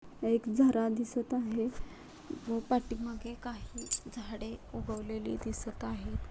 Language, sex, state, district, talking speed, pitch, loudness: Marathi, female, Maharashtra, Nagpur, 105 wpm, 230 Hz, -35 LUFS